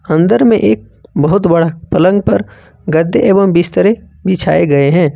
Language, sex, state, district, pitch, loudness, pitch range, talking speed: Hindi, male, Jharkhand, Ranchi, 170 Hz, -11 LUFS, 145-195 Hz, 150 wpm